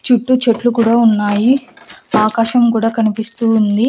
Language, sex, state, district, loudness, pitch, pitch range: Telugu, female, Andhra Pradesh, Annamaya, -14 LUFS, 230 Hz, 220-245 Hz